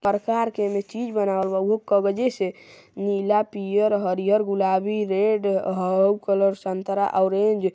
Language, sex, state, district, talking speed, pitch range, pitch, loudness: Hindi, male, Uttar Pradesh, Gorakhpur, 145 wpm, 190-210 Hz, 200 Hz, -23 LUFS